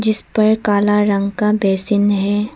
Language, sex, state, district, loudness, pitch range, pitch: Hindi, female, Arunachal Pradesh, Papum Pare, -15 LUFS, 200-215 Hz, 205 Hz